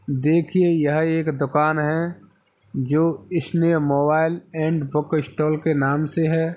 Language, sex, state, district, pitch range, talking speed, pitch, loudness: Hindi, male, Uttar Pradesh, Hamirpur, 150-165 Hz, 135 wpm, 155 Hz, -21 LUFS